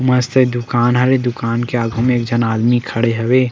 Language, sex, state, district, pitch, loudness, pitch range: Chhattisgarhi, male, Chhattisgarh, Sukma, 120 Hz, -16 LUFS, 115-125 Hz